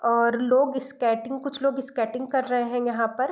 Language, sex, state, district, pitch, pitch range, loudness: Hindi, female, Bihar, East Champaran, 250 Hz, 235-265 Hz, -25 LUFS